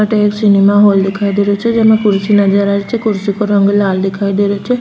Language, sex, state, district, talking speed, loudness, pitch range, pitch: Rajasthani, female, Rajasthan, Churu, 275 wpm, -12 LUFS, 200-210 Hz, 205 Hz